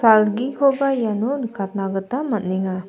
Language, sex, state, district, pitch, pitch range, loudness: Garo, female, Meghalaya, South Garo Hills, 220 Hz, 195-265 Hz, -21 LUFS